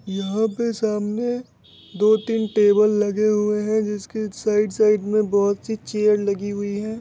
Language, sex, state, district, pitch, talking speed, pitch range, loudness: Hindi, male, Bihar, Muzaffarpur, 210 Hz, 165 wpm, 205-220 Hz, -21 LUFS